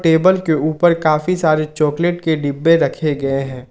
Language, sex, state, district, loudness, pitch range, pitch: Hindi, male, Jharkhand, Ranchi, -16 LUFS, 150-170 Hz, 155 Hz